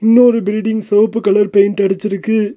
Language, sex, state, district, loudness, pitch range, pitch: Tamil, male, Tamil Nadu, Nilgiris, -13 LUFS, 205-220 Hz, 210 Hz